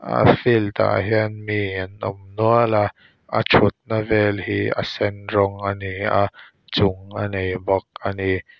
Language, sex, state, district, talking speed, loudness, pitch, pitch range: Mizo, male, Mizoram, Aizawl, 165 wpm, -21 LUFS, 100 Hz, 95-105 Hz